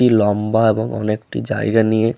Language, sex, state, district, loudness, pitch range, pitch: Bengali, male, West Bengal, Malda, -17 LUFS, 110-115 Hz, 110 Hz